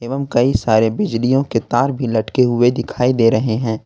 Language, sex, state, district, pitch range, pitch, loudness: Hindi, male, Jharkhand, Ranchi, 115-130 Hz, 120 Hz, -16 LUFS